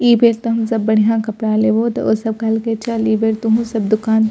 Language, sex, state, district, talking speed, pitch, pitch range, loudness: Maithili, female, Bihar, Purnia, 280 wpm, 225 Hz, 220-230 Hz, -16 LUFS